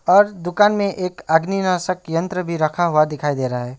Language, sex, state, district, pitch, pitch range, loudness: Hindi, male, West Bengal, Alipurduar, 175 Hz, 155-185 Hz, -19 LUFS